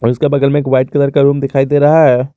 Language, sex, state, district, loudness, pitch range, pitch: Hindi, male, Jharkhand, Garhwa, -11 LUFS, 135-145 Hz, 140 Hz